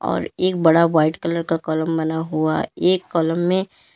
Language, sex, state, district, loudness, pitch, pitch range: Hindi, female, Uttar Pradesh, Lalitpur, -20 LUFS, 165 Hz, 160-175 Hz